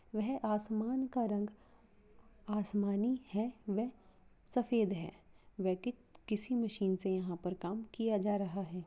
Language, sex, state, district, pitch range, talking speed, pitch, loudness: Hindi, female, Jharkhand, Sahebganj, 195-225 Hz, 135 wpm, 210 Hz, -37 LUFS